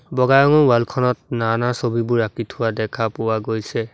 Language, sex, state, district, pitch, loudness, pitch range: Assamese, male, Assam, Sonitpur, 115 Hz, -19 LUFS, 115-125 Hz